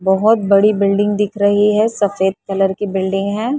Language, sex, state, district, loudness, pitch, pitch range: Hindi, female, Maharashtra, Mumbai Suburban, -15 LUFS, 205 Hz, 195-210 Hz